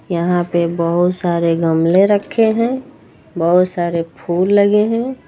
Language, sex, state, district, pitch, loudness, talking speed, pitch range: Hindi, female, Uttar Pradesh, Lucknow, 175 Hz, -15 LUFS, 135 wpm, 170-205 Hz